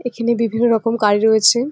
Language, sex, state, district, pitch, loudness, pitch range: Bengali, female, West Bengal, Jalpaiguri, 230 Hz, -16 LUFS, 220-240 Hz